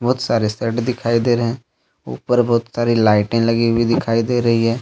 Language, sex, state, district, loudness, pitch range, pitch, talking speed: Hindi, male, Jharkhand, Deoghar, -17 LUFS, 115-120 Hz, 115 Hz, 210 wpm